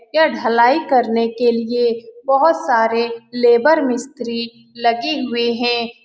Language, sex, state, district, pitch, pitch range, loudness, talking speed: Hindi, female, Bihar, Saran, 235 Hz, 230-250 Hz, -17 LUFS, 120 wpm